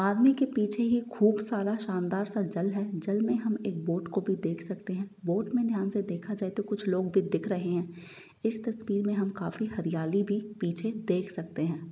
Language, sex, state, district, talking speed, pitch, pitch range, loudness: Hindi, female, Bihar, East Champaran, 220 wpm, 200 Hz, 185-215 Hz, -30 LUFS